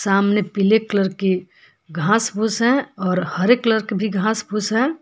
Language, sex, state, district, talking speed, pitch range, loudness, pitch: Hindi, female, Jharkhand, Palamu, 180 wpm, 195-220 Hz, -19 LUFS, 210 Hz